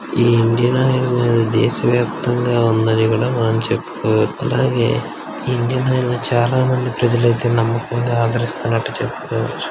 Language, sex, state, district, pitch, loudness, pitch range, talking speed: Telugu, male, Telangana, Karimnagar, 120 Hz, -17 LUFS, 115-125 Hz, 105 wpm